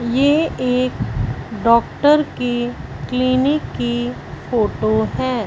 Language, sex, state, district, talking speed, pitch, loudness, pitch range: Hindi, female, Punjab, Fazilka, 90 wpm, 240 Hz, -18 LUFS, 185-255 Hz